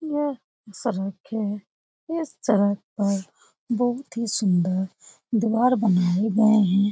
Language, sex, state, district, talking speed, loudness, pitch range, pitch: Hindi, female, Bihar, Lakhisarai, 115 wpm, -24 LUFS, 195-245 Hz, 215 Hz